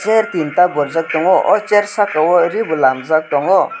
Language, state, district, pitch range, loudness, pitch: Kokborok, Tripura, West Tripura, 155-205 Hz, -14 LUFS, 175 Hz